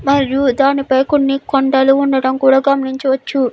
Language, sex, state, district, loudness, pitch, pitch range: Telugu, female, Andhra Pradesh, Guntur, -14 LUFS, 270 Hz, 265-275 Hz